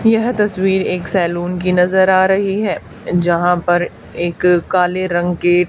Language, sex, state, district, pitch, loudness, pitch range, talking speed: Hindi, female, Haryana, Charkhi Dadri, 180 Hz, -16 LUFS, 175-190 Hz, 160 wpm